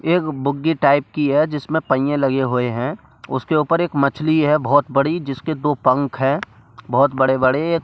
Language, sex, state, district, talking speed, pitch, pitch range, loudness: Hindi, male, Delhi, New Delhi, 185 wpm, 145 Hz, 135-155 Hz, -18 LUFS